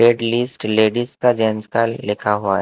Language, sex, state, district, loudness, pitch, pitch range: Hindi, male, Himachal Pradesh, Shimla, -18 LUFS, 115 Hz, 110-120 Hz